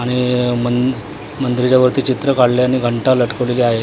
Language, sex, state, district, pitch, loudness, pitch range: Marathi, male, Maharashtra, Mumbai Suburban, 125 Hz, -15 LUFS, 120-130 Hz